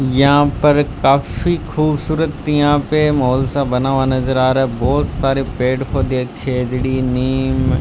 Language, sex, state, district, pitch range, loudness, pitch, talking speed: Hindi, male, Rajasthan, Bikaner, 130-145 Hz, -16 LUFS, 135 Hz, 170 wpm